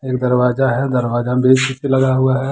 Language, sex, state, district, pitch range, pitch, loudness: Hindi, male, Jharkhand, Deoghar, 125-130 Hz, 130 Hz, -15 LUFS